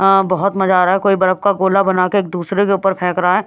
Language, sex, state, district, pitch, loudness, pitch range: Hindi, female, Haryana, Jhajjar, 190 Hz, -15 LUFS, 185-195 Hz